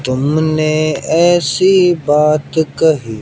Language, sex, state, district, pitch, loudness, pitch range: Hindi, male, Haryana, Jhajjar, 155 Hz, -13 LUFS, 145-165 Hz